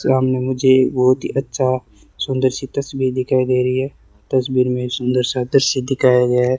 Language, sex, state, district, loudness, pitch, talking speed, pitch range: Hindi, male, Rajasthan, Bikaner, -18 LUFS, 130 Hz, 180 wpm, 125-130 Hz